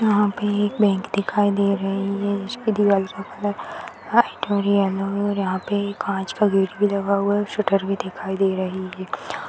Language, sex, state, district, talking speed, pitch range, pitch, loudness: Hindi, female, Bihar, Purnia, 200 wpm, 195-205 Hz, 200 Hz, -22 LUFS